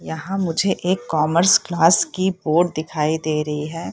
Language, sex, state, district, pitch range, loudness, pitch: Hindi, female, Bihar, Purnia, 155-185 Hz, -19 LUFS, 165 Hz